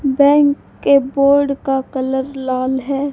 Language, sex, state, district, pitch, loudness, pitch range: Hindi, female, Haryana, Charkhi Dadri, 275 Hz, -16 LUFS, 265-280 Hz